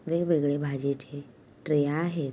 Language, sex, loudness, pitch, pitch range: Marathi, female, -28 LUFS, 145 Hz, 140-160 Hz